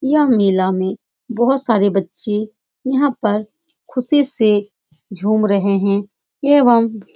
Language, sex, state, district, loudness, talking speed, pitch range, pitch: Hindi, female, Bihar, Supaul, -16 LUFS, 115 wpm, 200-260 Hz, 215 Hz